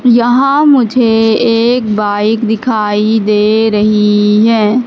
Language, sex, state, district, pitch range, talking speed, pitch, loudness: Hindi, female, Madhya Pradesh, Katni, 210-240 Hz, 100 wpm, 220 Hz, -10 LUFS